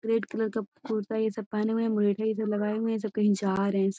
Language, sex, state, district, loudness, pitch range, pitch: Magahi, female, Bihar, Gaya, -28 LUFS, 205-220 Hz, 215 Hz